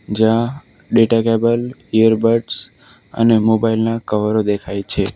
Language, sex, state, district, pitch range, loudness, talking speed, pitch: Gujarati, male, Gujarat, Valsad, 105-115 Hz, -16 LUFS, 130 wpm, 115 Hz